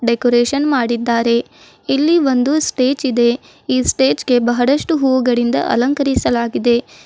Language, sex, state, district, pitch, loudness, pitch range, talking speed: Kannada, female, Karnataka, Bidar, 255 Hz, -15 LUFS, 240-275 Hz, 100 wpm